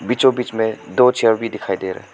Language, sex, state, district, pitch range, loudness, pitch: Hindi, male, Arunachal Pradesh, Papum Pare, 105-125 Hz, -18 LUFS, 115 Hz